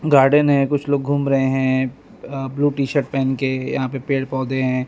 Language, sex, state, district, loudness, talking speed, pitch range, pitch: Hindi, male, Maharashtra, Mumbai Suburban, -19 LUFS, 220 wpm, 130-140 Hz, 135 Hz